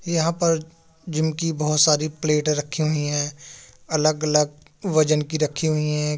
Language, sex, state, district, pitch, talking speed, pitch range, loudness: Hindi, male, Uttar Pradesh, Jalaun, 155 Hz, 165 wpm, 150-160 Hz, -22 LUFS